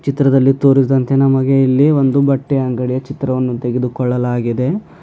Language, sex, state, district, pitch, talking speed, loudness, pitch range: Kannada, male, Karnataka, Bidar, 135 Hz, 110 wpm, -14 LUFS, 125-135 Hz